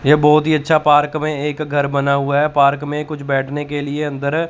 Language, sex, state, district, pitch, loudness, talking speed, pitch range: Hindi, male, Chandigarh, Chandigarh, 145 Hz, -17 LUFS, 240 wpm, 140-150 Hz